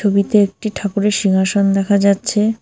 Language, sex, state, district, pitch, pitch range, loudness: Bengali, female, West Bengal, Cooch Behar, 200 Hz, 200-210 Hz, -15 LUFS